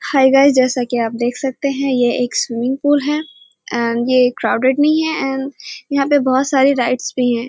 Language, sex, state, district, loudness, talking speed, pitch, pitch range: Hindi, male, Bihar, Kishanganj, -16 LUFS, 210 wpm, 260 Hz, 245-280 Hz